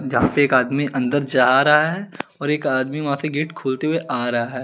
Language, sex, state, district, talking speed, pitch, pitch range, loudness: Hindi, male, Chandigarh, Chandigarh, 205 wpm, 140 Hz, 130-150 Hz, -19 LUFS